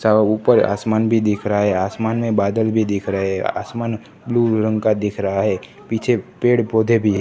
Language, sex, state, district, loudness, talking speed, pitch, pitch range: Hindi, male, Gujarat, Gandhinagar, -19 LUFS, 210 wpm, 110 Hz, 105-115 Hz